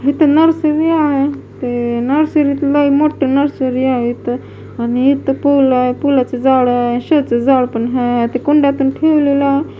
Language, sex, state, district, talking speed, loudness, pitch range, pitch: Marathi, female, Maharashtra, Mumbai Suburban, 180 wpm, -14 LUFS, 250-290 Hz, 275 Hz